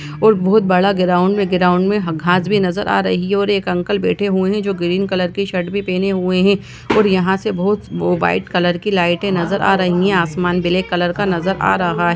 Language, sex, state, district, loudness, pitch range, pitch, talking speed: Hindi, female, Chhattisgarh, Sukma, -16 LUFS, 175-200 Hz, 185 Hz, 245 wpm